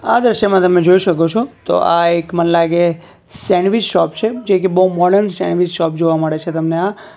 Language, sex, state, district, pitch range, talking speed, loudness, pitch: Gujarati, male, Gujarat, Valsad, 170-200 Hz, 210 wpm, -14 LUFS, 180 Hz